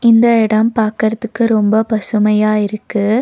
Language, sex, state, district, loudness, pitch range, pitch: Tamil, female, Tamil Nadu, Nilgiris, -14 LUFS, 215-230 Hz, 220 Hz